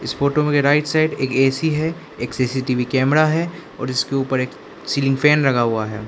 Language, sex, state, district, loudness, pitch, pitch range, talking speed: Hindi, male, Arunachal Pradesh, Lower Dibang Valley, -19 LUFS, 135 Hz, 130-150 Hz, 205 wpm